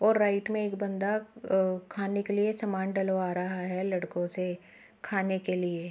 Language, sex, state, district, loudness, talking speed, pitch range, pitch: Hindi, female, Uttar Pradesh, Muzaffarnagar, -30 LUFS, 195 wpm, 180-205 Hz, 190 Hz